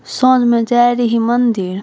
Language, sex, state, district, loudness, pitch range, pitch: Maithili, female, Bihar, Saharsa, -13 LUFS, 230-245 Hz, 240 Hz